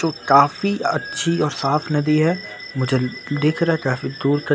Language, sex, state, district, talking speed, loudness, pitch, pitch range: Hindi, male, Bihar, Patna, 170 wpm, -20 LUFS, 150 Hz, 140-165 Hz